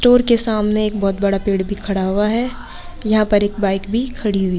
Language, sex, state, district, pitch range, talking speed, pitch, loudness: Hindi, female, Bihar, Saran, 195-230 Hz, 250 wpm, 210 Hz, -18 LUFS